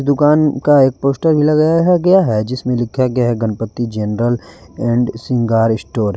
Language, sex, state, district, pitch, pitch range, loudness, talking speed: Hindi, male, Jharkhand, Garhwa, 125 Hz, 115-145 Hz, -15 LUFS, 175 wpm